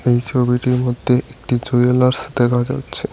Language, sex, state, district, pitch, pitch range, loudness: Bengali, male, West Bengal, Cooch Behar, 125 Hz, 120-125 Hz, -17 LUFS